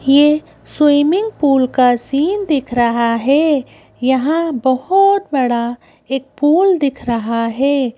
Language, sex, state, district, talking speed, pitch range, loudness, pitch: Hindi, female, Madhya Pradesh, Bhopal, 120 wpm, 250-305 Hz, -15 LUFS, 275 Hz